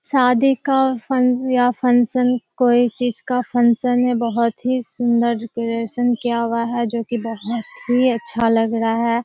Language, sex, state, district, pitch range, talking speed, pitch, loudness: Hindi, female, Bihar, Kishanganj, 230-250 Hz, 160 wpm, 240 Hz, -18 LUFS